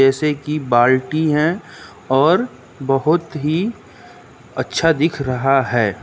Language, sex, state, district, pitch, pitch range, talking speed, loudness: Hindi, male, Uttar Pradesh, Lucknow, 145 Hz, 130-155 Hz, 110 wpm, -17 LUFS